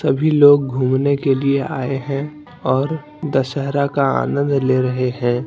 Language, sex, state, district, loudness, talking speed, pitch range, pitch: Hindi, male, Jharkhand, Deoghar, -18 LUFS, 155 wpm, 130-145 Hz, 140 Hz